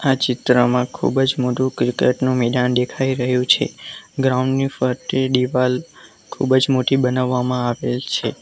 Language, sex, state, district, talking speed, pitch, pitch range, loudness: Gujarati, male, Gujarat, Valsad, 130 wpm, 125 Hz, 125-130 Hz, -19 LUFS